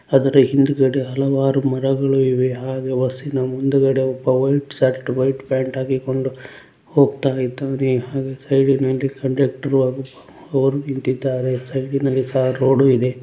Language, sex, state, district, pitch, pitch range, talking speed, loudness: Kannada, male, Karnataka, Dakshina Kannada, 135 Hz, 130-135 Hz, 115 wpm, -19 LUFS